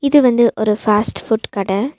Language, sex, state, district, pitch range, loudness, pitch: Tamil, female, Tamil Nadu, Nilgiris, 210-250 Hz, -16 LUFS, 220 Hz